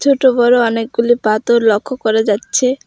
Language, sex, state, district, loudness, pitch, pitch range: Bengali, female, West Bengal, Alipurduar, -14 LUFS, 240 Hz, 220-255 Hz